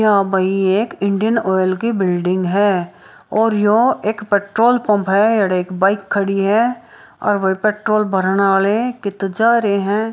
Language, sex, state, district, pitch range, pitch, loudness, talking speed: Hindi, female, Bihar, Saharsa, 195-220 Hz, 205 Hz, -16 LUFS, 165 wpm